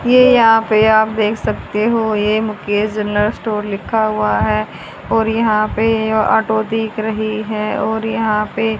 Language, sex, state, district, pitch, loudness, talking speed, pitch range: Hindi, female, Haryana, Charkhi Dadri, 220 Hz, -16 LUFS, 170 wpm, 210-225 Hz